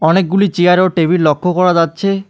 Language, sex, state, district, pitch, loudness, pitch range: Bengali, male, West Bengal, Alipurduar, 180 Hz, -13 LUFS, 165-190 Hz